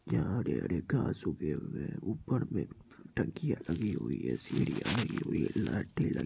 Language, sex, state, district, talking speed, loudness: Hindi, male, Bihar, Purnia, 175 wpm, -35 LUFS